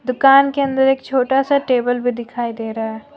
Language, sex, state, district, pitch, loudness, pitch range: Hindi, female, Jharkhand, Deoghar, 255 Hz, -17 LUFS, 240-270 Hz